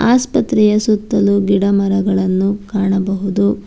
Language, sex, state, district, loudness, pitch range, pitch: Kannada, female, Karnataka, Bangalore, -15 LUFS, 195-210 Hz, 200 Hz